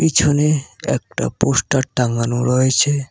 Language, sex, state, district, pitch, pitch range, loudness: Bengali, male, West Bengal, Cooch Behar, 135 Hz, 125-145 Hz, -17 LUFS